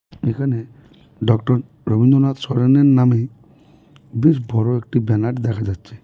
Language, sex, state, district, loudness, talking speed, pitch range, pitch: Bengali, male, West Bengal, Cooch Behar, -18 LUFS, 110 wpm, 115-135 Hz, 120 Hz